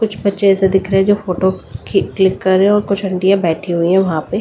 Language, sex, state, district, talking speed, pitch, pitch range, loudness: Hindi, female, Delhi, New Delhi, 245 wpm, 195 Hz, 185-200 Hz, -14 LUFS